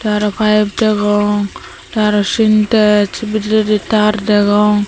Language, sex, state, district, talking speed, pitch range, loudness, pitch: Chakma, female, Tripura, Dhalai, 125 wpm, 205-215 Hz, -13 LUFS, 210 Hz